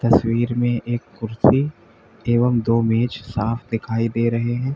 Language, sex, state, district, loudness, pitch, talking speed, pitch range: Hindi, male, Uttar Pradesh, Lalitpur, -20 LUFS, 115 Hz, 150 wpm, 115-120 Hz